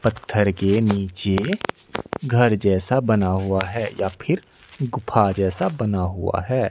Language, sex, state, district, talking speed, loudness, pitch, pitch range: Hindi, male, Odisha, Nuapada, 135 wpm, -22 LUFS, 105 Hz, 95-115 Hz